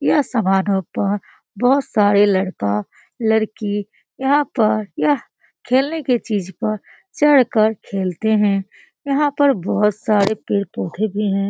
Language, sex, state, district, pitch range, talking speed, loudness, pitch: Hindi, female, Bihar, Lakhisarai, 200-255 Hz, 130 wpm, -18 LUFS, 215 Hz